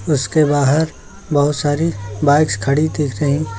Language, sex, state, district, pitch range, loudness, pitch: Hindi, male, Uttar Pradesh, Lucknow, 140-155 Hz, -17 LUFS, 145 Hz